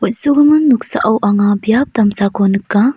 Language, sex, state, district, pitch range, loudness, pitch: Garo, female, Meghalaya, North Garo Hills, 205-260 Hz, -12 LUFS, 220 Hz